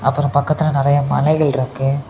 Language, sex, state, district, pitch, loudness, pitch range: Tamil, male, Tamil Nadu, Kanyakumari, 140 Hz, -17 LUFS, 135-145 Hz